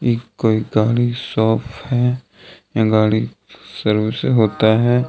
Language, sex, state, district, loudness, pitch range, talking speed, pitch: Hindi, male, Jharkhand, Deoghar, -17 LUFS, 110-120 Hz, 120 wpm, 110 Hz